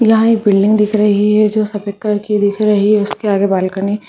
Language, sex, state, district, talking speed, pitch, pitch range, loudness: Hindi, female, Rajasthan, Churu, 220 wpm, 210 Hz, 200-215 Hz, -13 LUFS